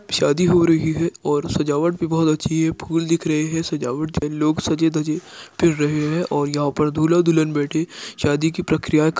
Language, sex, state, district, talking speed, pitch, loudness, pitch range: Hindi, male, Uttar Pradesh, Jyotiba Phule Nagar, 195 wpm, 160 Hz, -20 LUFS, 150-165 Hz